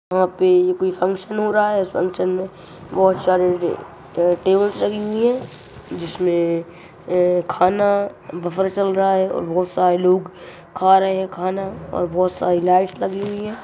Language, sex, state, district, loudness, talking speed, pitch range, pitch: Hindi, female, Uttar Pradesh, Budaun, -19 LUFS, 170 wpm, 180-195 Hz, 185 Hz